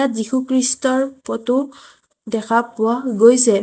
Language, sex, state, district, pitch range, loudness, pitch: Assamese, female, Assam, Sonitpur, 230-260 Hz, -17 LUFS, 250 Hz